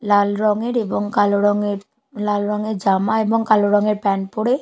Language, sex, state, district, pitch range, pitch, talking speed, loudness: Bengali, female, Bihar, Katihar, 205-220 Hz, 210 Hz, 170 wpm, -19 LUFS